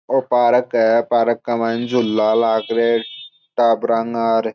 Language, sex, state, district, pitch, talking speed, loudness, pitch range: Marwari, male, Rajasthan, Churu, 115 Hz, 145 wpm, -17 LUFS, 115-120 Hz